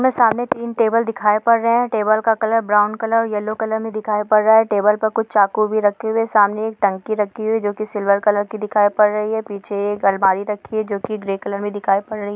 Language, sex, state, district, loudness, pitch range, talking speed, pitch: Hindi, female, Bihar, Samastipur, -18 LUFS, 205-220 Hz, 280 wpm, 215 Hz